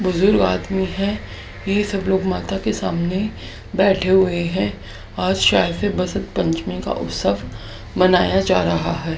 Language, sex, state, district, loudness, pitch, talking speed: Hindi, female, Haryana, Charkhi Dadri, -19 LUFS, 180 Hz, 150 wpm